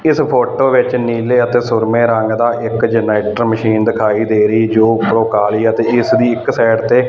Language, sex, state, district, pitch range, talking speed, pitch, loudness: Punjabi, male, Punjab, Fazilka, 110-120 Hz, 205 wpm, 115 Hz, -13 LUFS